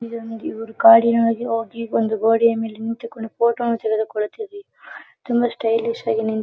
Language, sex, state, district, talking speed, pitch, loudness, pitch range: Kannada, female, Karnataka, Dharwad, 120 wpm, 230 Hz, -20 LUFS, 225-235 Hz